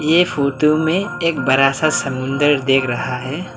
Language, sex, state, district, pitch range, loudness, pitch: Hindi, male, Arunachal Pradesh, Lower Dibang Valley, 135-160 Hz, -17 LUFS, 145 Hz